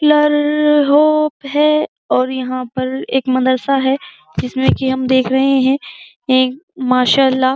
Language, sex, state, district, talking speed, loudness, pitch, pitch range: Hindi, female, Uttar Pradesh, Jyotiba Phule Nagar, 125 wpm, -15 LUFS, 265 Hz, 260-295 Hz